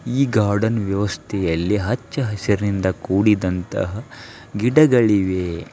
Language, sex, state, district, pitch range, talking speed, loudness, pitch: Kannada, male, Karnataka, Dharwad, 95-115 Hz, 75 wpm, -19 LUFS, 105 Hz